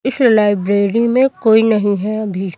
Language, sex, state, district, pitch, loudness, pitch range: Hindi, female, Chhattisgarh, Raipur, 215 Hz, -14 LUFS, 200-235 Hz